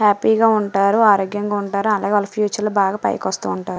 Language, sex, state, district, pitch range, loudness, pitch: Telugu, female, Andhra Pradesh, Srikakulam, 200-210 Hz, -18 LUFS, 205 Hz